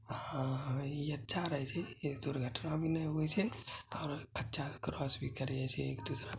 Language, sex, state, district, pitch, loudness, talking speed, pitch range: Hindi, male, Bihar, Bhagalpur, 140 Hz, -38 LUFS, 205 wpm, 130-155 Hz